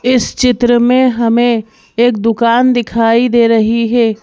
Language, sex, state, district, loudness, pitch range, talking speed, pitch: Hindi, female, Madhya Pradesh, Bhopal, -11 LUFS, 230-245 Hz, 140 wpm, 235 Hz